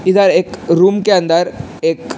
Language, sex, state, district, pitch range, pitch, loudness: Hindi, male, Uttar Pradesh, Hamirpur, 170-195 Hz, 185 Hz, -13 LUFS